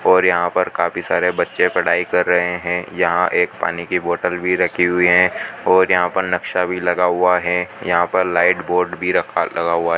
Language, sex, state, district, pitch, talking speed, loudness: Hindi, male, Rajasthan, Bikaner, 90 Hz, 215 wpm, -17 LUFS